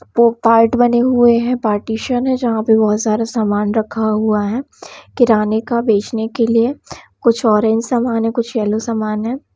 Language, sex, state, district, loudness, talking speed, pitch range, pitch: Hindi, female, Bihar, Samastipur, -15 LUFS, 170 wpm, 220-240 Hz, 230 Hz